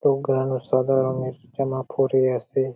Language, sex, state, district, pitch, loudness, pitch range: Bengali, male, West Bengal, Purulia, 130 Hz, -23 LUFS, 130-135 Hz